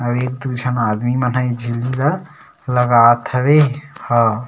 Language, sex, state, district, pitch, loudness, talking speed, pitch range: Chhattisgarhi, male, Chhattisgarh, Sarguja, 125 Hz, -16 LUFS, 175 wpm, 120-130 Hz